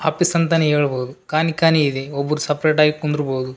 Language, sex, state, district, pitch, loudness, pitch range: Kannada, male, Karnataka, Raichur, 150 Hz, -18 LUFS, 140-160 Hz